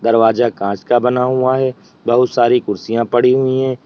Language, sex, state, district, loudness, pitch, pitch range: Hindi, male, Uttar Pradesh, Lalitpur, -15 LUFS, 120 Hz, 115-130 Hz